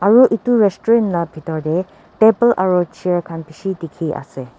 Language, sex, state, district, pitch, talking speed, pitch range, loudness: Nagamese, female, Nagaland, Dimapur, 180 Hz, 155 wpm, 165-220 Hz, -17 LUFS